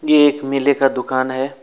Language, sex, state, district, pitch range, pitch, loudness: Hindi, male, West Bengal, Alipurduar, 130-140 Hz, 135 Hz, -17 LUFS